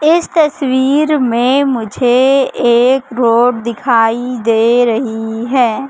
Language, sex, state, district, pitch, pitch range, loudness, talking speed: Hindi, female, Madhya Pradesh, Katni, 245 Hz, 235-270 Hz, -12 LUFS, 100 wpm